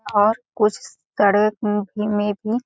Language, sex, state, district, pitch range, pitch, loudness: Hindi, female, Chhattisgarh, Balrampur, 205-215 Hz, 210 Hz, -20 LUFS